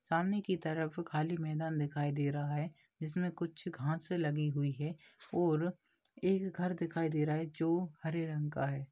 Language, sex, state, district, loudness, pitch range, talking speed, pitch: Hindi, female, Bihar, Jahanabad, -36 LUFS, 150-170 Hz, 180 wpm, 160 Hz